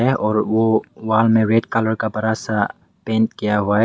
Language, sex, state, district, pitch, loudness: Hindi, male, Meghalaya, West Garo Hills, 110 Hz, -19 LUFS